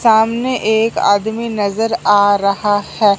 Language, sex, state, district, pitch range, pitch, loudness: Hindi, male, Punjab, Fazilka, 205-225 Hz, 220 Hz, -15 LUFS